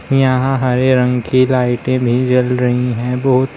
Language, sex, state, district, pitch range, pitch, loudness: Hindi, male, Uttar Pradesh, Shamli, 125-130 Hz, 125 Hz, -14 LUFS